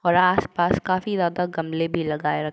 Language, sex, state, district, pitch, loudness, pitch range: Hindi, female, Uttar Pradesh, Jalaun, 175 Hz, -23 LUFS, 165-180 Hz